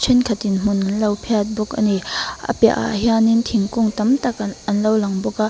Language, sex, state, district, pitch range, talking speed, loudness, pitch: Mizo, female, Mizoram, Aizawl, 205-230 Hz, 220 wpm, -19 LUFS, 215 Hz